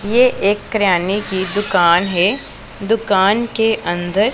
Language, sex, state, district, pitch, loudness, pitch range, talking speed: Hindi, female, Punjab, Pathankot, 200 Hz, -16 LUFS, 190-225 Hz, 125 wpm